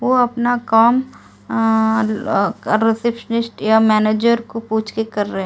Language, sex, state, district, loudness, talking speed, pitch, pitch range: Hindi, female, Delhi, New Delhi, -17 LUFS, 120 wpm, 225 Hz, 220-235 Hz